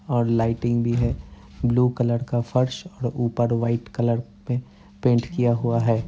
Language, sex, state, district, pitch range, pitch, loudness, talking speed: Hindi, male, Uttar Pradesh, Jyotiba Phule Nagar, 115-125 Hz, 120 Hz, -23 LUFS, 165 wpm